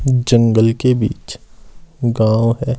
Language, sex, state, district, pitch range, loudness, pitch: Hindi, male, Himachal Pradesh, Shimla, 115-125 Hz, -15 LUFS, 120 Hz